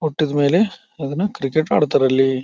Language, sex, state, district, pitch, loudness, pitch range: Kannada, male, Karnataka, Bijapur, 150 Hz, -18 LUFS, 135-160 Hz